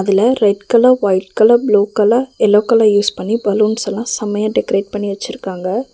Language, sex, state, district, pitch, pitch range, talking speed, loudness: Tamil, female, Tamil Nadu, Nilgiris, 210 Hz, 200-230 Hz, 160 wpm, -14 LUFS